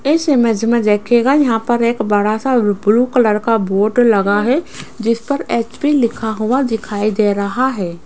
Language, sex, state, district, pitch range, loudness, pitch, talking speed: Hindi, female, Rajasthan, Jaipur, 210-250 Hz, -15 LUFS, 230 Hz, 180 wpm